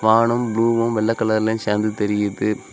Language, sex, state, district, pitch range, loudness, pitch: Tamil, male, Tamil Nadu, Kanyakumari, 105-115 Hz, -20 LUFS, 110 Hz